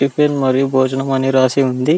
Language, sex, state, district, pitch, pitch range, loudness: Telugu, male, Andhra Pradesh, Anantapur, 135 Hz, 130-140 Hz, -15 LUFS